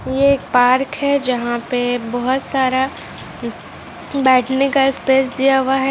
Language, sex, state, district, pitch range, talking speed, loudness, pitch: Hindi, female, Jharkhand, Sahebganj, 250-270 Hz, 150 wpm, -16 LUFS, 265 Hz